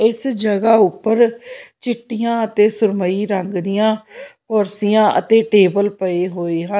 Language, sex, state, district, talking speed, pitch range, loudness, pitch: Punjabi, female, Punjab, Pathankot, 125 wpm, 200-225 Hz, -16 LUFS, 215 Hz